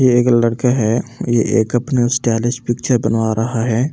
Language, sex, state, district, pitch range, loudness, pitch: Hindi, male, Delhi, New Delhi, 115-125 Hz, -16 LUFS, 120 Hz